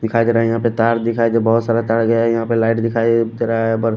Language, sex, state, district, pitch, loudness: Hindi, male, Delhi, New Delhi, 115 Hz, -16 LUFS